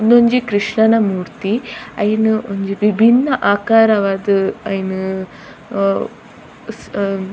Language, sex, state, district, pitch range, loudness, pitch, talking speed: Tulu, female, Karnataka, Dakshina Kannada, 195-225 Hz, -16 LUFS, 210 Hz, 80 wpm